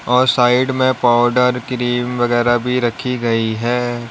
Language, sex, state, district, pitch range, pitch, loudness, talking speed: Hindi, male, Uttar Pradesh, Lalitpur, 120-125 Hz, 125 Hz, -16 LUFS, 145 wpm